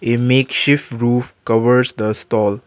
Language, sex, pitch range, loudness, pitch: English, male, 115-125 Hz, -16 LUFS, 120 Hz